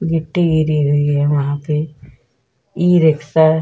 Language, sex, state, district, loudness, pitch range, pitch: Hindi, female, Bihar, Vaishali, -15 LUFS, 145-160 Hz, 150 Hz